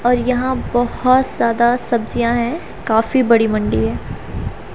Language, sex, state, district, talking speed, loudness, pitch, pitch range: Hindi, female, Haryana, Rohtak, 125 wpm, -17 LUFS, 240 Hz, 225-250 Hz